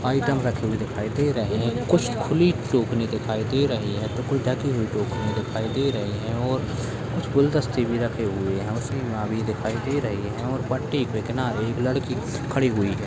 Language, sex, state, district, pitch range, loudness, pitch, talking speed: Hindi, male, Goa, North and South Goa, 110-130 Hz, -25 LUFS, 120 Hz, 205 wpm